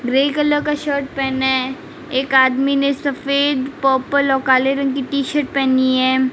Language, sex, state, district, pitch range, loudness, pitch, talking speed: Hindi, female, Rajasthan, Bikaner, 265-280 Hz, -17 LUFS, 270 Hz, 170 wpm